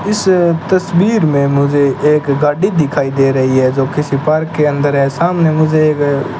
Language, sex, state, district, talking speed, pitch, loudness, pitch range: Hindi, male, Rajasthan, Bikaner, 185 wpm, 150 Hz, -13 LUFS, 140-165 Hz